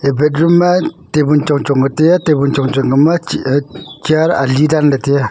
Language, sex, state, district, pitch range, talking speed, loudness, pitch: Wancho, male, Arunachal Pradesh, Longding, 140-160 Hz, 215 wpm, -13 LUFS, 145 Hz